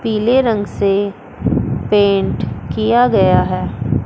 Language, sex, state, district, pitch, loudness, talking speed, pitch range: Hindi, female, Chandigarh, Chandigarh, 215 Hz, -15 LUFS, 105 wpm, 200-235 Hz